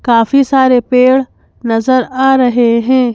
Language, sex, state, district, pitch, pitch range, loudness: Hindi, female, Madhya Pradesh, Bhopal, 255 Hz, 240-260 Hz, -11 LUFS